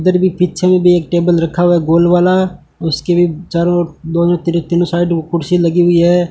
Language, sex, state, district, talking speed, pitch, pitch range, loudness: Hindi, male, Rajasthan, Bikaner, 230 wpm, 175 Hz, 170-175 Hz, -13 LUFS